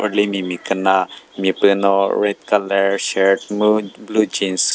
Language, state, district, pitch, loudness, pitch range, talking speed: Chakhesang, Nagaland, Dimapur, 100 Hz, -17 LUFS, 95-105 Hz, 150 wpm